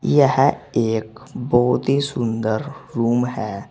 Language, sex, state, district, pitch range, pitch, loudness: Hindi, male, Uttar Pradesh, Saharanpur, 115-125 Hz, 120 Hz, -20 LUFS